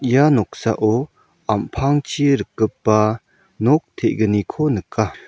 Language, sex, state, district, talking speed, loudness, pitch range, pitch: Garo, male, Meghalaya, South Garo Hills, 80 wpm, -19 LUFS, 110-145 Hz, 120 Hz